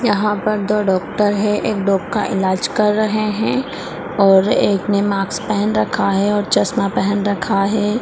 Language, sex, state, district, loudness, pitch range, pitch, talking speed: Hindi, female, Bihar, Purnia, -17 LUFS, 195-210 Hz, 205 Hz, 180 wpm